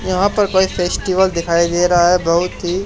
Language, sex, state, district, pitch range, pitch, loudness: Hindi, male, Haryana, Charkhi Dadri, 175-190 Hz, 180 Hz, -15 LUFS